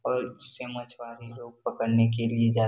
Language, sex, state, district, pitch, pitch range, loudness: Hindi, male, Bihar, Jahanabad, 115 Hz, 115-120 Hz, -28 LUFS